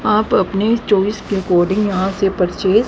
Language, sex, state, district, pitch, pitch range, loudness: Hindi, female, Haryana, Rohtak, 195 Hz, 190-210 Hz, -16 LUFS